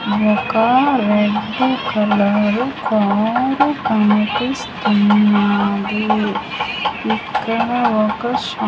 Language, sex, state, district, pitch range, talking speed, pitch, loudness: Telugu, female, Andhra Pradesh, Manyam, 210-255 Hz, 60 wpm, 215 Hz, -16 LUFS